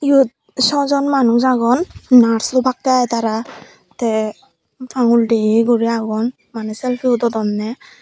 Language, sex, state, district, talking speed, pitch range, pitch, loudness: Chakma, female, Tripura, Dhalai, 120 wpm, 225-260 Hz, 240 Hz, -16 LUFS